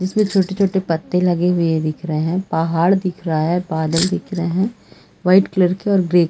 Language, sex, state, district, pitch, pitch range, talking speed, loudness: Hindi, female, Chhattisgarh, Balrampur, 180 Hz, 165-190 Hz, 210 wpm, -18 LUFS